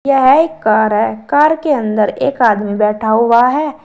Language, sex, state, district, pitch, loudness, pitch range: Hindi, female, Uttar Pradesh, Saharanpur, 235 Hz, -13 LUFS, 215-290 Hz